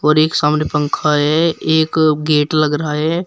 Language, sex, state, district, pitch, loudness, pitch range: Hindi, female, Uttar Pradesh, Shamli, 155 Hz, -15 LUFS, 150-160 Hz